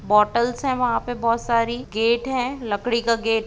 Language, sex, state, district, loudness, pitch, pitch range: Hindi, female, Jharkhand, Jamtara, -22 LUFS, 235 Hz, 225-245 Hz